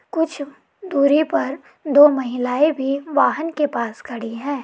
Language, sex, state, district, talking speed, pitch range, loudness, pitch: Hindi, female, Jharkhand, Sahebganj, 140 wpm, 265-300 Hz, -19 LUFS, 285 Hz